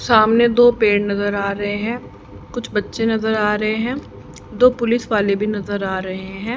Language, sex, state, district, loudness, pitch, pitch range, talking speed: Hindi, female, Haryana, Rohtak, -18 LUFS, 215 Hz, 205-235 Hz, 190 wpm